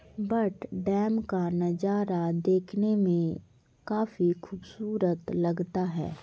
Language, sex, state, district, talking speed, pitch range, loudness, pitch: Hindi, female, Bihar, Gaya, 105 wpm, 175-210 Hz, -29 LUFS, 185 Hz